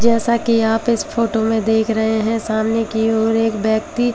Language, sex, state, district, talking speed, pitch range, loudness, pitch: Hindi, female, Delhi, New Delhi, 200 wpm, 220-230 Hz, -17 LUFS, 225 Hz